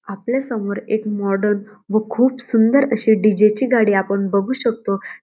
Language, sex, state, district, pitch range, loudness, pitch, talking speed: Marathi, female, Maharashtra, Dhule, 200-235 Hz, -18 LUFS, 215 Hz, 160 wpm